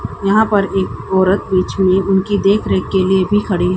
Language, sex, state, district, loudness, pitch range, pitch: Hindi, female, Haryana, Jhajjar, -15 LUFS, 185-200 Hz, 190 Hz